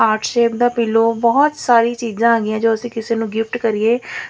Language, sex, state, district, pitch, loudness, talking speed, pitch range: Punjabi, female, Punjab, Fazilka, 230 Hz, -16 LUFS, 195 wpm, 225-240 Hz